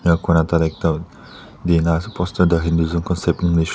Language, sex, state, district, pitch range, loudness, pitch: Nagamese, male, Nagaland, Dimapur, 80-90 Hz, -19 LUFS, 85 Hz